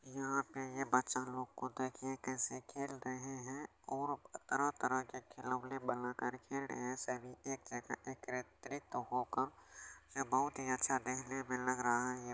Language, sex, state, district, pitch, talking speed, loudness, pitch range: Maithili, male, Bihar, Supaul, 130 Hz, 165 wpm, -41 LUFS, 125-135 Hz